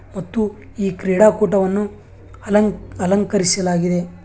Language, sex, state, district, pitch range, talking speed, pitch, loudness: Kannada, male, Karnataka, Bangalore, 180-205 Hz, 70 wpm, 195 Hz, -18 LUFS